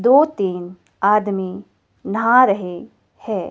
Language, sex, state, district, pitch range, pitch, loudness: Hindi, female, Himachal Pradesh, Shimla, 180-225 Hz, 195 Hz, -18 LUFS